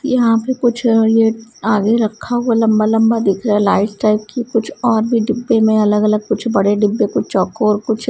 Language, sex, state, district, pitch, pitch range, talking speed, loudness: Hindi, female, Punjab, Kapurthala, 225 Hz, 210-230 Hz, 220 wpm, -15 LUFS